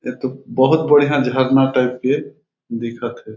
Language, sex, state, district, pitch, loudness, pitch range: Chhattisgarhi, male, Chhattisgarh, Raigarh, 130 Hz, -17 LUFS, 125-140 Hz